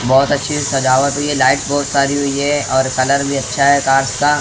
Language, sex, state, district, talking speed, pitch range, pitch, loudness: Hindi, male, Maharashtra, Mumbai Suburban, 230 wpm, 135-145 Hz, 140 Hz, -14 LUFS